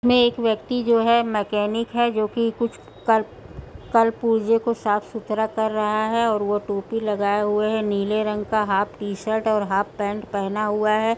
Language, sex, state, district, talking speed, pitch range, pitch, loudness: Hindi, female, Uttar Pradesh, Budaun, 180 wpm, 210-230 Hz, 215 Hz, -22 LUFS